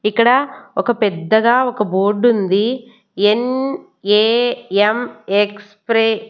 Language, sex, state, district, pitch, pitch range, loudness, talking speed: Telugu, female, Andhra Pradesh, Annamaya, 220 Hz, 205-240 Hz, -16 LUFS, 75 wpm